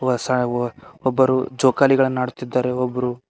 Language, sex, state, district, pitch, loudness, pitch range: Kannada, male, Karnataka, Koppal, 125 Hz, -20 LUFS, 125-130 Hz